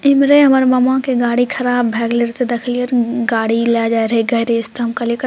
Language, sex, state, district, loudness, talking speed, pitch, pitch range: Maithili, female, Bihar, Purnia, -15 LUFS, 240 wpm, 240 Hz, 230-255 Hz